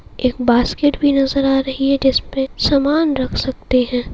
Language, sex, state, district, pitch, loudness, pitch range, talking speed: Hindi, female, Bihar, Saharsa, 270 Hz, -16 LUFS, 255-275 Hz, 190 wpm